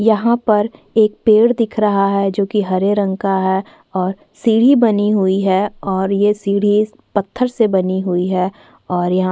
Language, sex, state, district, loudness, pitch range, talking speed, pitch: Hindi, female, Chhattisgarh, Korba, -16 LUFS, 190-215 Hz, 180 wpm, 200 Hz